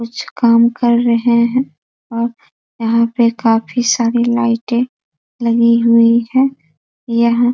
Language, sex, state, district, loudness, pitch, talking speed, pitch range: Hindi, female, Bihar, East Champaran, -14 LUFS, 235 Hz, 125 wpm, 230-240 Hz